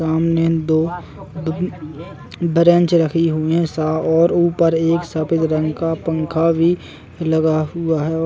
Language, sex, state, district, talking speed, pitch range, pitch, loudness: Hindi, male, Uttar Pradesh, Jalaun, 145 wpm, 160-170 Hz, 165 Hz, -17 LUFS